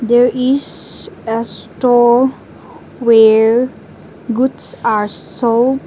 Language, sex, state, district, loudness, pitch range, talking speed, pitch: English, female, Nagaland, Dimapur, -14 LUFS, 225-250 Hz, 80 wpm, 240 Hz